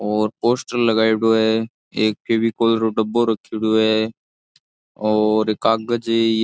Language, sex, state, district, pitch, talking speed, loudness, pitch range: Marwari, male, Rajasthan, Nagaur, 110 Hz, 120 wpm, -19 LUFS, 110-115 Hz